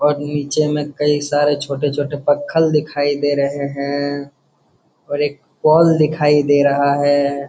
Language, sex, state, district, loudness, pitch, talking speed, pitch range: Hindi, male, Jharkhand, Jamtara, -17 LUFS, 145 Hz, 150 wpm, 145-150 Hz